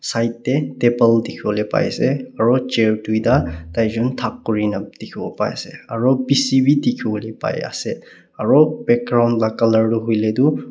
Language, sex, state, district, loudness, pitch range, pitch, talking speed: Nagamese, male, Nagaland, Kohima, -18 LUFS, 110-130 Hz, 115 Hz, 155 wpm